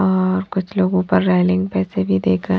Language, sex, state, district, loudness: Hindi, female, Haryana, Jhajjar, -18 LUFS